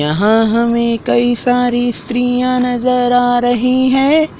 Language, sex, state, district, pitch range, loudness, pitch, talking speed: Hindi, male, Madhya Pradesh, Dhar, 235-250 Hz, -13 LUFS, 245 Hz, 125 wpm